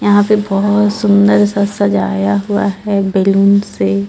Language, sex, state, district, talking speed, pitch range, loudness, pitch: Hindi, female, Jharkhand, Ranchi, 130 wpm, 195-205 Hz, -13 LUFS, 200 Hz